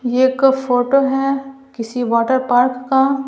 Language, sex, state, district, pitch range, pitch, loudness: Hindi, female, Bihar, Patna, 245-270 Hz, 260 Hz, -16 LUFS